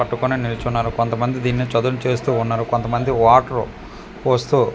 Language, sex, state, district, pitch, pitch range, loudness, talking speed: Telugu, male, Andhra Pradesh, Manyam, 120 Hz, 115-125 Hz, -19 LUFS, 125 wpm